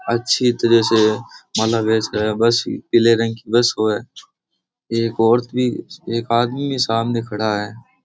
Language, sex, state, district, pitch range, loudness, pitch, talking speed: Rajasthani, male, Rajasthan, Churu, 110-120 Hz, -18 LUFS, 115 Hz, 150 wpm